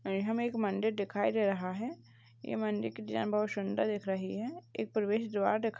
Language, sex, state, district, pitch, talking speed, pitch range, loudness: Hindi, female, Uttar Pradesh, Jalaun, 200 Hz, 225 wpm, 185-220 Hz, -34 LUFS